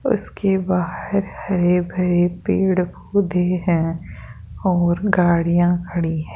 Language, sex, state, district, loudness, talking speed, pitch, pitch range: Hindi, female, Rajasthan, Jaipur, -20 LUFS, 105 wpm, 180 Hz, 170-190 Hz